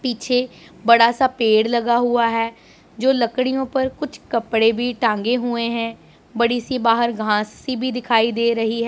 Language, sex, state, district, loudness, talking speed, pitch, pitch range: Hindi, female, Punjab, Pathankot, -19 LUFS, 175 wpm, 235 Hz, 230-250 Hz